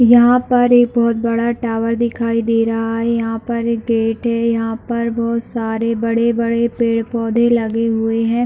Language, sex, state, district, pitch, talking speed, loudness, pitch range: Hindi, female, Chhattisgarh, Raigarh, 230 Hz, 170 wpm, -16 LUFS, 230-235 Hz